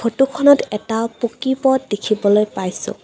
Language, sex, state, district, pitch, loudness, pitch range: Assamese, female, Assam, Kamrup Metropolitan, 230 Hz, -17 LUFS, 210-265 Hz